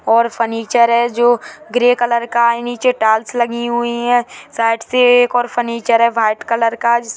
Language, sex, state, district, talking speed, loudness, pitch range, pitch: Hindi, female, Chhattisgarh, Sarguja, 210 wpm, -15 LUFS, 230-240 Hz, 235 Hz